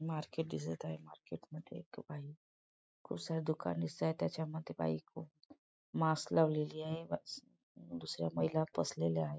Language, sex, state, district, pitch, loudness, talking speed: Marathi, female, Maharashtra, Chandrapur, 150 Hz, -39 LUFS, 140 wpm